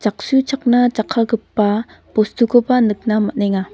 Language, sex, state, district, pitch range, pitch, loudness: Garo, female, Meghalaya, North Garo Hills, 210-245 Hz, 225 Hz, -17 LUFS